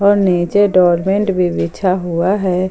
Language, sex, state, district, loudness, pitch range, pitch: Hindi, female, Jharkhand, Palamu, -14 LUFS, 175-200 Hz, 185 Hz